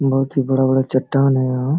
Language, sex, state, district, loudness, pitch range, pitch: Hindi, male, Jharkhand, Sahebganj, -17 LUFS, 130-135 Hz, 135 Hz